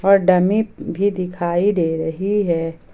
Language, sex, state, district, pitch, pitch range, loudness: Hindi, female, Jharkhand, Ranchi, 185 Hz, 170-200 Hz, -19 LUFS